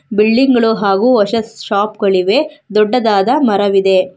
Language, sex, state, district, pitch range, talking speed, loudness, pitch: Kannada, female, Karnataka, Bangalore, 200-235 Hz, 115 wpm, -13 LUFS, 210 Hz